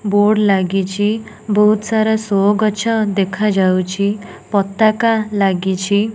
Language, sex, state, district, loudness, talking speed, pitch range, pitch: Odia, female, Odisha, Nuapada, -16 LUFS, 80 wpm, 195-215 Hz, 205 Hz